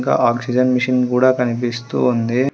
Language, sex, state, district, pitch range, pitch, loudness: Telugu, female, Telangana, Hyderabad, 120-125 Hz, 125 Hz, -17 LUFS